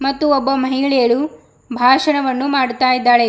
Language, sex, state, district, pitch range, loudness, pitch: Kannada, female, Karnataka, Bidar, 250-275 Hz, -15 LUFS, 265 Hz